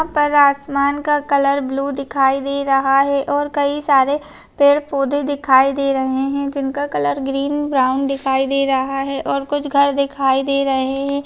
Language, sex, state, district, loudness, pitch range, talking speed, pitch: Hindi, female, Chhattisgarh, Kabirdham, -17 LUFS, 270-285 Hz, 175 wpm, 275 Hz